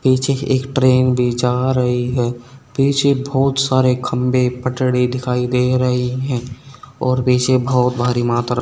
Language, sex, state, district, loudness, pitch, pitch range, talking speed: Hindi, male, Uttar Pradesh, Saharanpur, -17 LUFS, 125 Hz, 125-130 Hz, 145 wpm